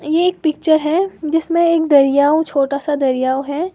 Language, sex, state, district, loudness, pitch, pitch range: Hindi, female, Uttar Pradesh, Lalitpur, -16 LUFS, 310 Hz, 280-330 Hz